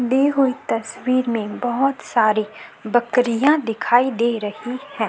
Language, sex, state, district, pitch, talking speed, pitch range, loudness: Hindi, female, Uttar Pradesh, Jyotiba Phule Nagar, 240 Hz, 130 wpm, 225-260 Hz, -20 LUFS